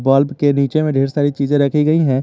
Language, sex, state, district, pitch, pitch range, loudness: Hindi, male, Jharkhand, Garhwa, 145 Hz, 140-150 Hz, -16 LUFS